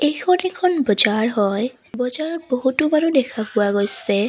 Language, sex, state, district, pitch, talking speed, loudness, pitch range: Assamese, female, Assam, Sonitpur, 250 Hz, 140 wpm, -19 LUFS, 215-310 Hz